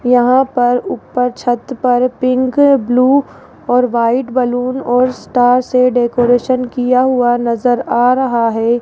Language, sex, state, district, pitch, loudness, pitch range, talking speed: Hindi, female, Rajasthan, Jaipur, 250 Hz, -13 LUFS, 245-255 Hz, 135 wpm